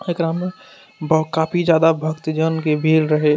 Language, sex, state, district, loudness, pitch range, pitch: Maithili, male, Bihar, Madhepura, -18 LUFS, 155-170 Hz, 160 Hz